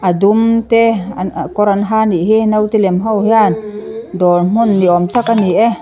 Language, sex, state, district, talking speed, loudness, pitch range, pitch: Mizo, female, Mizoram, Aizawl, 195 wpm, -12 LUFS, 185-225 Hz, 210 Hz